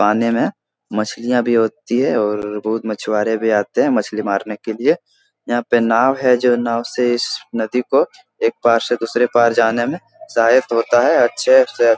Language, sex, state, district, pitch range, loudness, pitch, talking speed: Hindi, male, Bihar, Darbhanga, 110-125 Hz, -17 LUFS, 115 Hz, 195 wpm